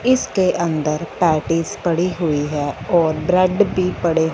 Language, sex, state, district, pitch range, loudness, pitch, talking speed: Hindi, female, Punjab, Fazilka, 155-180 Hz, -18 LUFS, 170 Hz, 140 wpm